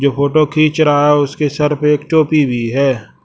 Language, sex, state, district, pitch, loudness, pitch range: Hindi, male, Chhattisgarh, Raipur, 150 Hz, -13 LUFS, 140-155 Hz